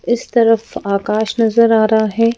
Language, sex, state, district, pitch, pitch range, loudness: Hindi, female, Madhya Pradesh, Bhopal, 225 Hz, 215-230 Hz, -14 LUFS